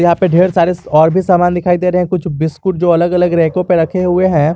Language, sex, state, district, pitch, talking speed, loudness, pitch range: Hindi, male, Jharkhand, Garhwa, 175 Hz, 275 wpm, -12 LUFS, 170-180 Hz